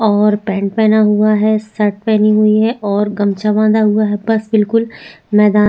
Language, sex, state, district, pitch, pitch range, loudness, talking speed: Hindi, female, Chhattisgarh, Sukma, 215 Hz, 210-215 Hz, -13 LUFS, 180 wpm